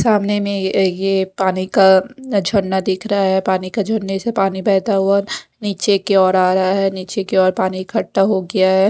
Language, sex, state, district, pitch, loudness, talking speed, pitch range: Hindi, female, Odisha, Khordha, 195 Hz, -16 LUFS, 200 wpm, 190-200 Hz